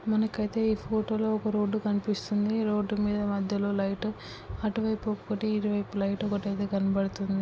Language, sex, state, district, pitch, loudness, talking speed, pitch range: Telugu, male, Telangana, Karimnagar, 210 Hz, -29 LUFS, 145 wpm, 200-215 Hz